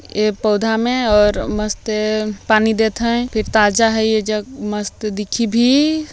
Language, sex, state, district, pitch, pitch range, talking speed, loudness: Hindi, male, Chhattisgarh, Jashpur, 215 Hz, 210-230 Hz, 165 wpm, -17 LUFS